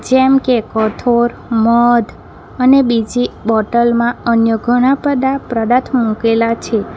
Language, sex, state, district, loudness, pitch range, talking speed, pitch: Gujarati, female, Gujarat, Valsad, -13 LUFS, 230-250 Hz, 110 wpm, 235 Hz